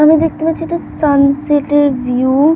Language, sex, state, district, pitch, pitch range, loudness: Bengali, female, West Bengal, North 24 Parganas, 290 Hz, 280-320 Hz, -13 LUFS